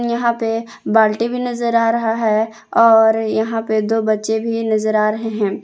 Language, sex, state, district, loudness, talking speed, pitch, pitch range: Hindi, female, Jharkhand, Palamu, -17 LUFS, 190 wpm, 225 Hz, 220-230 Hz